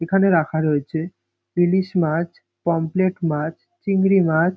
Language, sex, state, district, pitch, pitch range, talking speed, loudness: Bengali, male, West Bengal, North 24 Parganas, 170 Hz, 160-185 Hz, 120 wpm, -20 LUFS